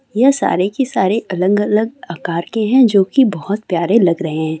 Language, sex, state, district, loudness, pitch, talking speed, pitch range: Hindi, female, Bihar, Saran, -15 LUFS, 200 Hz, 195 wpm, 175-225 Hz